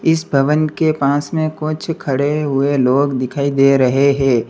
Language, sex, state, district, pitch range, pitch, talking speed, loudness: Hindi, male, Uttar Pradesh, Lalitpur, 135-155 Hz, 140 Hz, 175 wpm, -16 LUFS